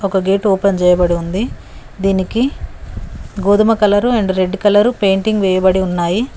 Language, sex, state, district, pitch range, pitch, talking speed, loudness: Telugu, female, Telangana, Mahabubabad, 190-210 Hz, 195 Hz, 130 wpm, -14 LUFS